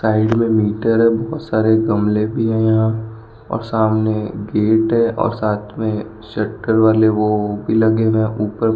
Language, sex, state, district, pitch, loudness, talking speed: Hindi, male, Rajasthan, Bikaner, 110 Hz, -17 LUFS, 180 wpm